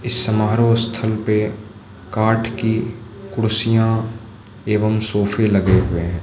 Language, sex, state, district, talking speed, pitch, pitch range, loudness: Hindi, male, Manipur, Imphal West, 105 wpm, 110 Hz, 105-115 Hz, -18 LUFS